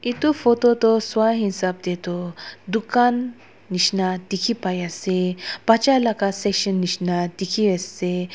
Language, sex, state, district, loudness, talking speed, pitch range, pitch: Nagamese, female, Nagaland, Dimapur, -21 LUFS, 95 wpm, 180-225 Hz, 195 Hz